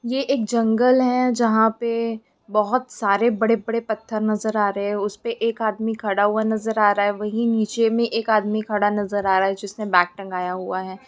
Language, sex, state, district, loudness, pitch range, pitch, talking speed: Hindi, female, Bihar, Jamui, -21 LUFS, 205-230 Hz, 220 Hz, 205 wpm